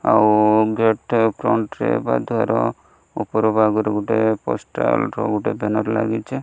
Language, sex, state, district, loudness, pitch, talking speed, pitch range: Odia, male, Odisha, Malkangiri, -19 LUFS, 110 Hz, 130 wpm, 105-110 Hz